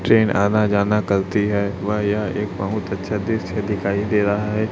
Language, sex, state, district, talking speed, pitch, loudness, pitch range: Hindi, male, Chhattisgarh, Raipur, 190 wpm, 105 Hz, -20 LUFS, 100-105 Hz